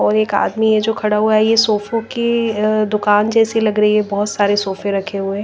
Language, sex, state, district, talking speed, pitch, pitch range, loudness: Hindi, female, Punjab, Pathankot, 230 wpm, 215 Hz, 205-220 Hz, -16 LUFS